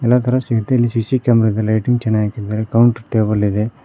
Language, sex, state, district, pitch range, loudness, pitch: Kannada, male, Karnataka, Koppal, 110-120 Hz, -16 LUFS, 115 Hz